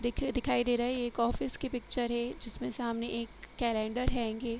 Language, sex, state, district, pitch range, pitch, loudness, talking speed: Hindi, female, Uttar Pradesh, Hamirpur, 235-245 Hz, 240 Hz, -33 LUFS, 210 wpm